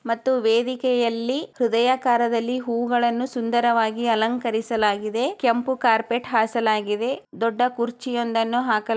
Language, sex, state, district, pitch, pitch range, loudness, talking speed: Kannada, female, Karnataka, Chamarajanagar, 235 Hz, 230-245 Hz, -22 LUFS, 85 wpm